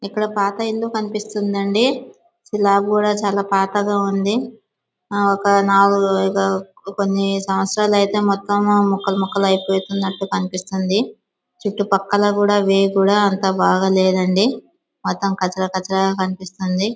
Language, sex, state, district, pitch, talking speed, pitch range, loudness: Telugu, male, Andhra Pradesh, Visakhapatnam, 200 Hz, 105 wpm, 195-205 Hz, -18 LUFS